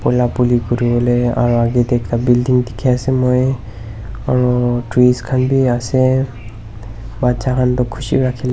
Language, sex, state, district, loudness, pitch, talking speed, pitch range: Nagamese, male, Nagaland, Dimapur, -15 LUFS, 125 Hz, 160 wpm, 120-125 Hz